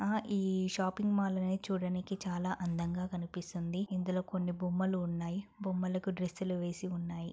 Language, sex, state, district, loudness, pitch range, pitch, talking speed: Telugu, female, Telangana, Karimnagar, -36 LUFS, 180-190 Hz, 185 Hz, 145 wpm